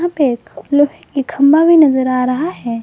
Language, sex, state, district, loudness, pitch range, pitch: Hindi, female, Jharkhand, Garhwa, -13 LUFS, 255-310 Hz, 280 Hz